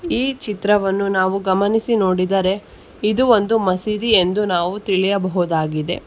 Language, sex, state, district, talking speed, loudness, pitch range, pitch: Kannada, female, Karnataka, Bangalore, 110 wpm, -18 LUFS, 185-215 Hz, 195 Hz